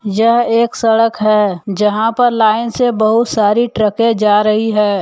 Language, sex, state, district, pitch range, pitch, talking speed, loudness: Hindi, male, Jharkhand, Deoghar, 210-230 Hz, 220 Hz, 165 wpm, -13 LUFS